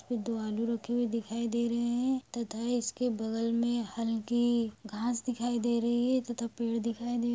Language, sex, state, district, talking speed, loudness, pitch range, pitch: Hindi, female, Bihar, Darbhanga, 180 wpm, -32 LUFS, 230-240 Hz, 235 Hz